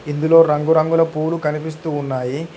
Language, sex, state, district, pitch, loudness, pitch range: Telugu, male, Telangana, Hyderabad, 155 Hz, -17 LUFS, 150-165 Hz